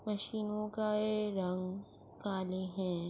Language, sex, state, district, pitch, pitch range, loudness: Urdu, female, Andhra Pradesh, Anantapur, 200 Hz, 185-210 Hz, -37 LUFS